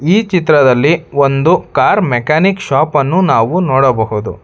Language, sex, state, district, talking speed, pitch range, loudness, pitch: Kannada, male, Karnataka, Bangalore, 120 wpm, 135-180 Hz, -12 LUFS, 150 Hz